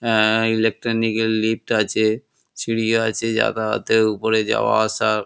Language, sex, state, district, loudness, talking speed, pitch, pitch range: Bengali, male, West Bengal, Kolkata, -19 LUFS, 125 wpm, 110 Hz, 110-115 Hz